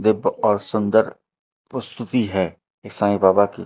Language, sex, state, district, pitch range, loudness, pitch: Hindi, male, Madhya Pradesh, Katni, 95-110 Hz, -20 LUFS, 100 Hz